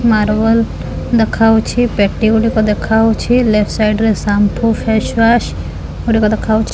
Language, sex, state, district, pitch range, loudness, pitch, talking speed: Odia, female, Odisha, Khordha, 215-225 Hz, -13 LUFS, 220 Hz, 135 wpm